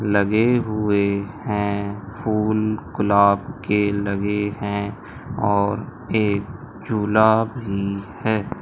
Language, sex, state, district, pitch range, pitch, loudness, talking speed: Hindi, male, Madhya Pradesh, Umaria, 100-110 Hz, 105 Hz, -21 LUFS, 90 wpm